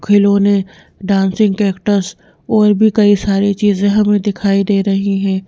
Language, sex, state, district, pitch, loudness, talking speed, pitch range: Hindi, female, Madhya Pradesh, Bhopal, 200 Hz, -13 LUFS, 140 wpm, 195-205 Hz